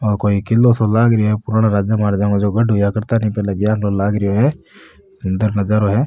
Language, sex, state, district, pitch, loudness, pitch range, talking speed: Marwari, male, Rajasthan, Nagaur, 105 Hz, -16 LUFS, 100-110 Hz, 245 wpm